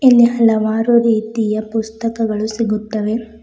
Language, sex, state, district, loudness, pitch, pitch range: Kannada, female, Karnataka, Bidar, -16 LUFS, 225 Hz, 215-230 Hz